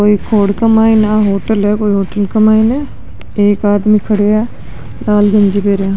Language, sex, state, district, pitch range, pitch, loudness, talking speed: Rajasthani, male, Rajasthan, Nagaur, 205-215 Hz, 210 Hz, -12 LUFS, 180 wpm